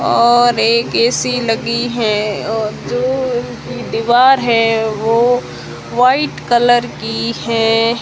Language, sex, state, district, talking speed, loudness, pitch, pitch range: Hindi, female, Rajasthan, Jaisalmer, 110 wpm, -14 LUFS, 235 Hz, 225-240 Hz